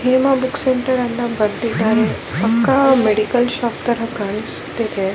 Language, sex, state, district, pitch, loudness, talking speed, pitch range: Kannada, female, Karnataka, Bellary, 235 Hz, -17 LUFS, 130 wpm, 215-255 Hz